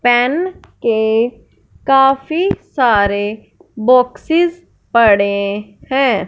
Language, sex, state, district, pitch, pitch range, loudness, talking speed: Hindi, female, Punjab, Fazilka, 245 Hz, 210-275 Hz, -15 LUFS, 65 wpm